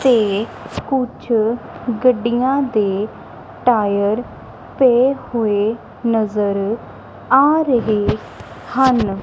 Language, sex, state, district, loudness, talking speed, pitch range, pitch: Punjabi, female, Punjab, Kapurthala, -17 LUFS, 70 wpm, 210-255 Hz, 230 Hz